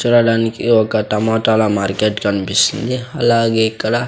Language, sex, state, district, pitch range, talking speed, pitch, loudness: Telugu, male, Andhra Pradesh, Sri Satya Sai, 105-120 Hz, 105 wpm, 115 Hz, -15 LUFS